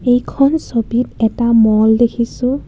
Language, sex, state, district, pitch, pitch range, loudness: Assamese, female, Assam, Kamrup Metropolitan, 235 Hz, 225-250 Hz, -14 LUFS